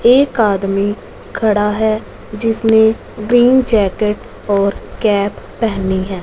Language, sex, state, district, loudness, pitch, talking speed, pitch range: Hindi, female, Punjab, Fazilka, -15 LUFS, 215 Hz, 105 wpm, 200-225 Hz